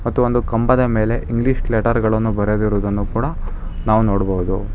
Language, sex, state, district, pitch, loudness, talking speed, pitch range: Kannada, male, Karnataka, Bangalore, 110 Hz, -18 LUFS, 140 wpm, 100-115 Hz